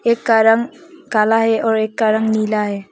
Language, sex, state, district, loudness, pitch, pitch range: Hindi, female, Arunachal Pradesh, Papum Pare, -16 LUFS, 220 Hz, 215-235 Hz